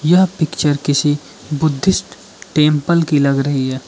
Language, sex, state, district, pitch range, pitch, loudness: Hindi, male, Arunachal Pradesh, Lower Dibang Valley, 145-160 Hz, 150 Hz, -16 LUFS